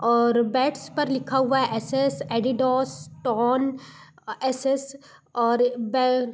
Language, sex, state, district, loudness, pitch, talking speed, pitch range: Hindi, female, Uttar Pradesh, Deoria, -24 LUFS, 255 Hz, 115 wpm, 235-270 Hz